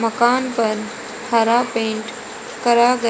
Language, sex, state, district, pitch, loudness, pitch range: Hindi, female, Haryana, Rohtak, 235 Hz, -19 LUFS, 225-240 Hz